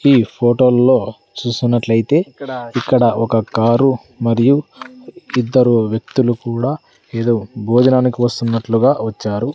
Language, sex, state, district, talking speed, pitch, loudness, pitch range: Telugu, male, Andhra Pradesh, Sri Satya Sai, 90 wpm, 120 Hz, -15 LUFS, 115-130 Hz